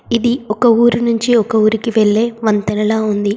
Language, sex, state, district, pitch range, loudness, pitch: Telugu, female, Telangana, Komaram Bheem, 210-235 Hz, -14 LUFS, 220 Hz